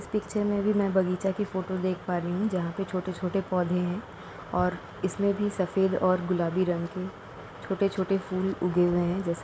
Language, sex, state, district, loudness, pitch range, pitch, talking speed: Hindi, female, Uttar Pradesh, Jalaun, -28 LUFS, 175-195 Hz, 185 Hz, 220 wpm